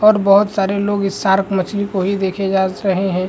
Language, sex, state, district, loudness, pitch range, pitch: Hindi, male, Chhattisgarh, Rajnandgaon, -16 LUFS, 190-200 Hz, 195 Hz